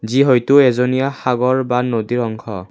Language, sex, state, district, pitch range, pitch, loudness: Assamese, male, Assam, Kamrup Metropolitan, 115-130 Hz, 125 Hz, -16 LUFS